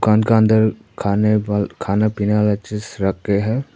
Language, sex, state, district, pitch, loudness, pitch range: Hindi, male, Arunachal Pradesh, Papum Pare, 105 Hz, -18 LUFS, 100-110 Hz